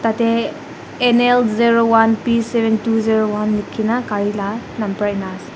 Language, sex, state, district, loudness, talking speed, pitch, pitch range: Nagamese, female, Nagaland, Dimapur, -17 LUFS, 170 wpm, 225 Hz, 210-230 Hz